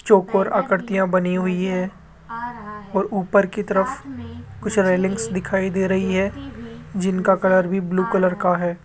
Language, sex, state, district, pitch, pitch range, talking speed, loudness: Hindi, male, Rajasthan, Jaipur, 190 Hz, 185-200 Hz, 150 wpm, -21 LUFS